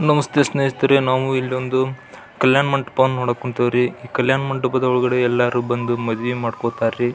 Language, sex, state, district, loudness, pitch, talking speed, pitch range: Kannada, male, Karnataka, Belgaum, -19 LUFS, 130 Hz, 150 wpm, 120-135 Hz